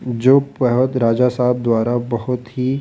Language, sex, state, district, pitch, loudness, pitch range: Hindi, male, Rajasthan, Jaipur, 125 Hz, -17 LUFS, 120-130 Hz